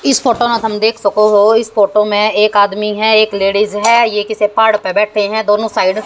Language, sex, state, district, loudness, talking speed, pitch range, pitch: Hindi, female, Haryana, Jhajjar, -12 LUFS, 250 wpm, 205-220 Hz, 210 Hz